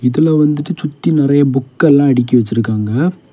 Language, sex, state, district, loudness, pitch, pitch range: Tamil, male, Tamil Nadu, Kanyakumari, -13 LUFS, 140 Hz, 125-150 Hz